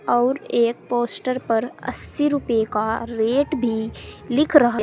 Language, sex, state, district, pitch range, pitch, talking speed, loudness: Hindi, female, Uttar Pradesh, Saharanpur, 225-275 Hz, 240 Hz, 135 wpm, -21 LUFS